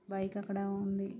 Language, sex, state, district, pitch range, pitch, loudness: Telugu, female, Telangana, Nalgonda, 195-200 Hz, 195 Hz, -37 LUFS